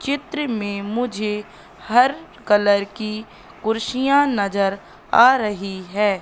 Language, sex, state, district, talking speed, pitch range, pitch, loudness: Hindi, female, Madhya Pradesh, Katni, 115 wpm, 205-255 Hz, 215 Hz, -20 LUFS